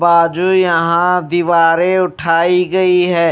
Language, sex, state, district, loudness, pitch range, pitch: Hindi, male, Odisha, Malkangiri, -13 LUFS, 170-180 Hz, 175 Hz